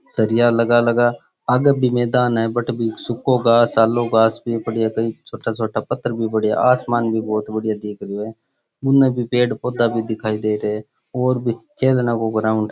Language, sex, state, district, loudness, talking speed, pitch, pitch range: Rajasthani, male, Rajasthan, Churu, -19 LUFS, 210 wpm, 115 Hz, 110-120 Hz